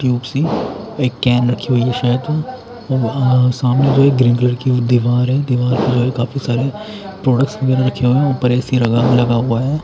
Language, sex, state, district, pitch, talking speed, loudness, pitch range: Hindi, male, Haryana, Charkhi Dadri, 125 Hz, 205 wpm, -15 LUFS, 125-135 Hz